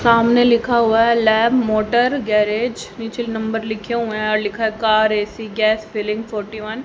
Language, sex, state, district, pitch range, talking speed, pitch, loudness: Hindi, female, Haryana, Charkhi Dadri, 215-235 Hz, 185 wpm, 220 Hz, -18 LUFS